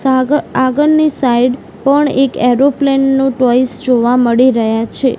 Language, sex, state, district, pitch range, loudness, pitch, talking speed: Gujarati, female, Gujarat, Gandhinagar, 245-275 Hz, -12 LUFS, 260 Hz, 140 wpm